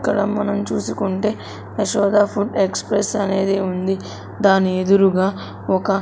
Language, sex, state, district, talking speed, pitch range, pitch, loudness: Telugu, female, Andhra Pradesh, Sri Satya Sai, 110 wpm, 190-205 Hz, 195 Hz, -19 LUFS